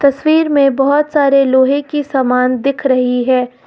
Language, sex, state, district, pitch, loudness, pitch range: Hindi, female, Uttar Pradesh, Lucknow, 275 Hz, -13 LUFS, 255-285 Hz